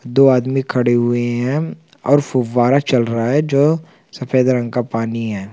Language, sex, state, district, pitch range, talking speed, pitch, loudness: Hindi, male, Chhattisgarh, Raigarh, 120-140 Hz, 175 wpm, 125 Hz, -16 LUFS